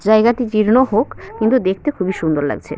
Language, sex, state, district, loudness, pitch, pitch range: Bengali, female, West Bengal, Malda, -16 LUFS, 215 Hz, 185-235 Hz